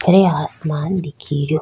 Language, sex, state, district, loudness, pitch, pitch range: Rajasthani, female, Rajasthan, Nagaur, -19 LUFS, 155 Hz, 150-185 Hz